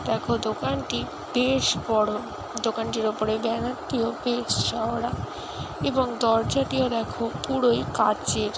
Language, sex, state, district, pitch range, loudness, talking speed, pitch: Bengali, female, West Bengal, Paschim Medinipur, 215-250 Hz, -25 LUFS, 100 wpm, 230 Hz